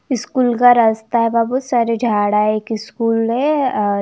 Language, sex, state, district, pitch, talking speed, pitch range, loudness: Hindi, female, Chandigarh, Chandigarh, 230 Hz, 195 wpm, 220-245 Hz, -16 LUFS